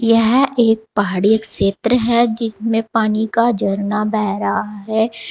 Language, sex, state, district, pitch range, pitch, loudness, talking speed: Hindi, female, Uttar Pradesh, Saharanpur, 210-230 Hz, 220 Hz, -17 LUFS, 135 wpm